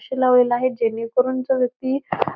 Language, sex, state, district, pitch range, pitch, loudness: Marathi, female, Maharashtra, Pune, 245-260 Hz, 255 Hz, -20 LUFS